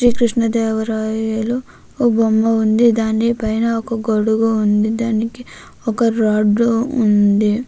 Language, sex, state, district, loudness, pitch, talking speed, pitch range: Telugu, female, Andhra Pradesh, Krishna, -16 LUFS, 225 Hz, 95 wpm, 220-230 Hz